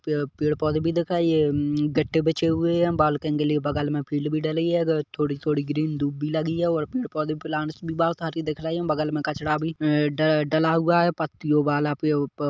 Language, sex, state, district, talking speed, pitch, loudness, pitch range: Hindi, male, Chhattisgarh, Kabirdham, 205 wpm, 155 Hz, -24 LUFS, 150-160 Hz